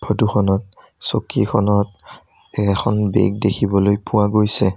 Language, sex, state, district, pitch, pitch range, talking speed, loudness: Assamese, male, Assam, Sonitpur, 100 Hz, 100-105 Hz, 100 wpm, -18 LUFS